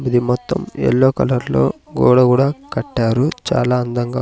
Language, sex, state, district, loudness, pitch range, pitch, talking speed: Telugu, male, Andhra Pradesh, Sri Satya Sai, -16 LUFS, 120-130 Hz, 125 Hz, 130 wpm